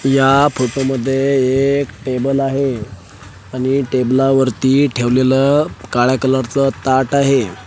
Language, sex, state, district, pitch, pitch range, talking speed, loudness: Marathi, male, Maharashtra, Washim, 130 Hz, 125-135 Hz, 115 wpm, -15 LUFS